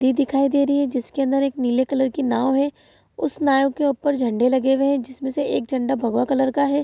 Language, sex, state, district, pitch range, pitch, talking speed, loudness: Hindi, female, Bihar, Saharsa, 260-280 Hz, 270 Hz, 265 wpm, -21 LUFS